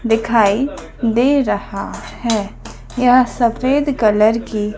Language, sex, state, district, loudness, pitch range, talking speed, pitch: Hindi, female, Madhya Pradesh, Dhar, -16 LUFS, 215-255 Hz, 100 wpm, 235 Hz